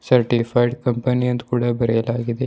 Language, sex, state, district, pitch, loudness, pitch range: Kannada, male, Karnataka, Bidar, 120 Hz, -20 LUFS, 120-125 Hz